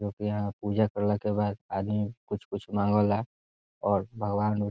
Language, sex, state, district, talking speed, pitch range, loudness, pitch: Bhojpuri, male, Bihar, Saran, 180 wpm, 100-105 Hz, -29 LUFS, 105 Hz